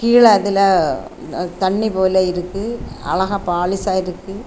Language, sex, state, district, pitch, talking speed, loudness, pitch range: Tamil, female, Tamil Nadu, Kanyakumari, 190 Hz, 105 wpm, -17 LUFS, 180-200 Hz